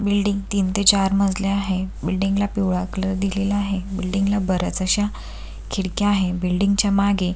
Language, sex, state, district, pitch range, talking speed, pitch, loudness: Marathi, female, Maharashtra, Sindhudurg, 190-200 Hz, 170 wpm, 195 Hz, -21 LUFS